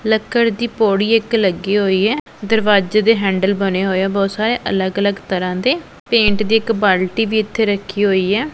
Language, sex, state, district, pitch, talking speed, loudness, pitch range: Punjabi, female, Punjab, Pathankot, 205 Hz, 195 wpm, -16 LUFS, 195-225 Hz